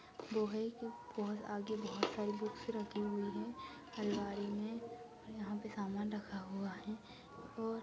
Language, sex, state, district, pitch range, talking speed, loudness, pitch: Hindi, female, Uttarakhand, Tehri Garhwal, 205-230 Hz, 140 wpm, -43 LUFS, 215 Hz